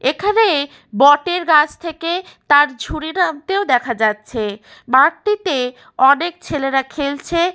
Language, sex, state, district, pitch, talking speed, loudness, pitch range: Bengali, female, West Bengal, Malda, 290 Hz, 105 wpm, -16 LUFS, 260-345 Hz